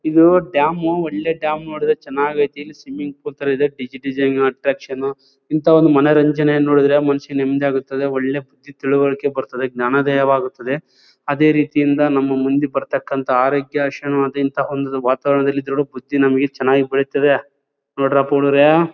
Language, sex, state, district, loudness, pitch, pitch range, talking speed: Kannada, male, Karnataka, Bellary, -17 LUFS, 140 Hz, 135-145 Hz, 135 wpm